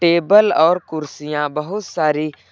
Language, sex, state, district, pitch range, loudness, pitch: Hindi, male, Uttar Pradesh, Lucknow, 150-175 Hz, -17 LUFS, 155 Hz